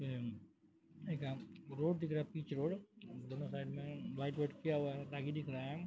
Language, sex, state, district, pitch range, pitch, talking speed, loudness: Hindi, male, Jharkhand, Sahebganj, 135-155 Hz, 145 Hz, 165 wpm, -43 LUFS